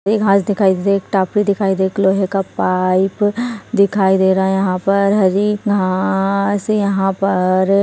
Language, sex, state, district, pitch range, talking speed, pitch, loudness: Hindi, female, Maharashtra, Solapur, 190-205 Hz, 170 wpm, 195 Hz, -15 LUFS